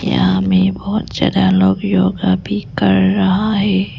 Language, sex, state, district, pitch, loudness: Hindi, female, Arunachal Pradesh, Lower Dibang Valley, 185 Hz, -15 LUFS